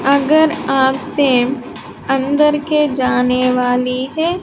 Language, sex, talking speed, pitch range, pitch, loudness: Hindi, female, 95 wpm, 255-300 Hz, 270 Hz, -15 LUFS